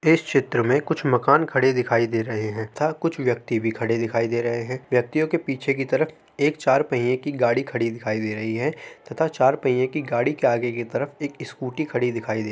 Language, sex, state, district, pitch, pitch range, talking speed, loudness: Hindi, male, Uttar Pradesh, Jalaun, 125 Hz, 115-145 Hz, 240 wpm, -23 LUFS